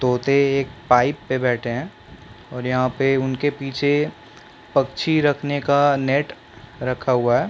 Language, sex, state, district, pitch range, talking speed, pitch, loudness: Hindi, male, Chhattisgarh, Balrampur, 125-145 Hz, 145 wpm, 130 Hz, -20 LUFS